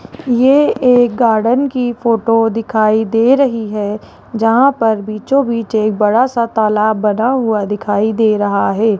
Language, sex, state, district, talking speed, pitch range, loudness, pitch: Hindi, female, Rajasthan, Jaipur, 145 wpm, 215-245 Hz, -13 LUFS, 225 Hz